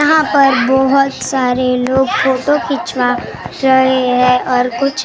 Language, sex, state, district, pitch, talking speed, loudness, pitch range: Hindi, female, Maharashtra, Gondia, 260 Hz, 165 wpm, -13 LUFS, 250-275 Hz